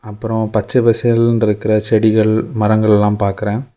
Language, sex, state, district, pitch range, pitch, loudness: Tamil, male, Tamil Nadu, Kanyakumari, 105-115 Hz, 110 Hz, -14 LUFS